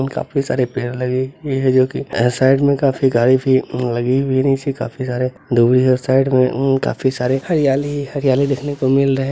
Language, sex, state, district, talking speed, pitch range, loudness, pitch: Hindi, male, Bihar, Begusarai, 210 wpm, 130-135 Hz, -17 LUFS, 130 Hz